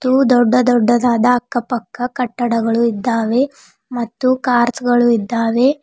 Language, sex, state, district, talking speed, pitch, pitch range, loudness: Kannada, female, Karnataka, Bidar, 115 wpm, 240 Hz, 235-250 Hz, -16 LUFS